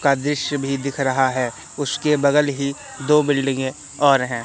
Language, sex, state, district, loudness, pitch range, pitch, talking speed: Hindi, male, Madhya Pradesh, Katni, -20 LUFS, 135-145 Hz, 140 Hz, 175 wpm